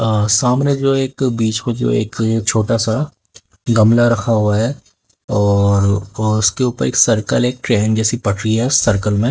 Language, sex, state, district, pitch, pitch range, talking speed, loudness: Hindi, male, Haryana, Jhajjar, 110 Hz, 105-120 Hz, 180 wpm, -15 LUFS